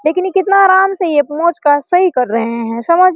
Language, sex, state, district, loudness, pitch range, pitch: Hindi, female, Bihar, Araria, -13 LUFS, 290-370 Hz, 340 Hz